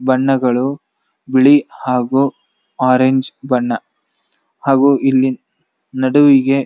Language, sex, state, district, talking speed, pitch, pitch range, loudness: Kannada, male, Karnataka, Dharwad, 80 wpm, 130 Hz, 130-135 Hz, -14 LUFS